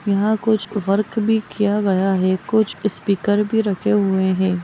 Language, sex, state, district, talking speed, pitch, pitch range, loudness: Magahi, female, Bihar, Gaya, 155 wpm, 205 Hz, 190-215 Hz, -19 LUFS